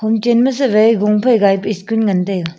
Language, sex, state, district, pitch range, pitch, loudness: Wancho, female, Arunachal Pradesh, Longding, 195-230 Hz, 215 Hz, -14 LUFS